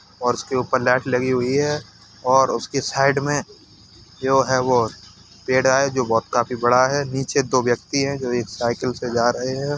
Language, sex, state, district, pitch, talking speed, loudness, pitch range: Hindi, male, Uttar Pradesh, Hamirpur, 125 Hz, 195 wpm, -20 LUFS, 120-135 Hz